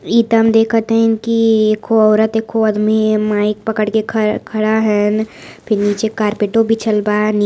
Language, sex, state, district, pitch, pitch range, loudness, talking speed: Hindi, female, Uttar Pradesh, Varanasi, 220 Hz, 215-225 Hz, -14 LUFS, 195 wpm